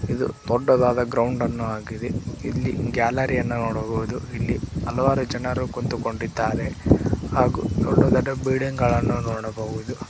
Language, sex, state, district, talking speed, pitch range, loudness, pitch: Kannada, male, Karnataka, Koppal, 105 wpm, 115-125 Hz, -23 LUFS, 120 Hz